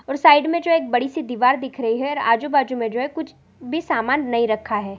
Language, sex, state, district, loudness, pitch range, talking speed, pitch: Hindi, female, Goa, North and South Goa, -20 LUFS, 230-295 Hz, 240 wpm, 265 Hz